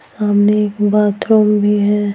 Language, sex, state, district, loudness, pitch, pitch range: Hindi, female, Bihar, Patna, -14 LUFS, 210 Hz, 205-210 Hz